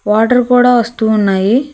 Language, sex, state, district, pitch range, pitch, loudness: Telugu, female, Telangana, Hyderabad, 215-250 Hz, 235 Hz, -11 LUFS